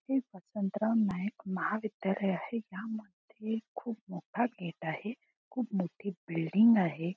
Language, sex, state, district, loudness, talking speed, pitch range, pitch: Marathi, female, Maharashtra, Aurangabad, -33 LUFS, 115 wpm, 185-225 Hz, 205 Hz